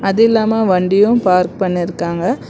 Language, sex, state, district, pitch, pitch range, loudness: Tamil, female, Karnataka, Bangalore, 190 Hz, 180-220 Hz, -14 LUFS